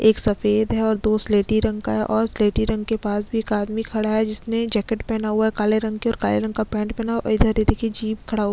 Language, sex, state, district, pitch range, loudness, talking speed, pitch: Hindi, female, Uttarakhand, Tehri Garhwal, 210-225 Hz, -22 LUFS, 290 wpm, 220 Hz